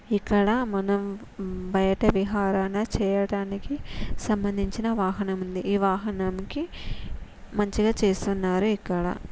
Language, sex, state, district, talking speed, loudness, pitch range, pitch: Telugu, female, Telangana, Nalgonda, 85 wpm, -26 LUFS, 190-210 Hz, 200 Hz